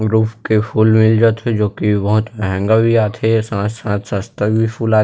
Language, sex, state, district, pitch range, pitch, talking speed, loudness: Chhattisgarhi, male, Chhattisgarh, Rajnandgaon, 105-110 Hz, 110 Hz, 240 wpm, -15 LUFS